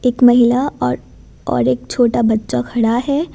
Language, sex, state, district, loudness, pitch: Hindi, female, Gujarat, Gandhinagar, -15 LUFS, 230 Hz